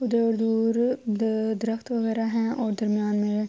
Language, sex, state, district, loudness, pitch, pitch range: Urdu, female, Andhra Pradesh, Anantapur, -25 LUFS, 225 Hz, 215-230 Hz